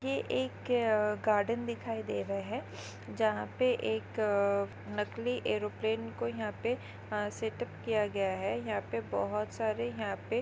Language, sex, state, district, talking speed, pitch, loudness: Hindi, female, Maharashtra, Nagpur, 165 wpm, 205 Hz, -34 LUFS